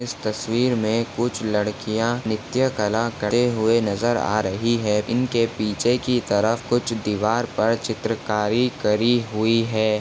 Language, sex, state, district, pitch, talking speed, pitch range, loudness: Hindi, male, Maharashtra, Dhule, 115 Hz, 145 wpm, 105-120 Hz, -22 LUFS